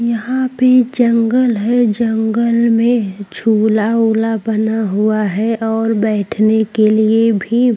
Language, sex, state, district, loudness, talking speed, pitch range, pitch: Hindi, female, Maharashtra, Chandrapur, -14 LUFS, 130 wpm, 215-235 Hz, 225 Hz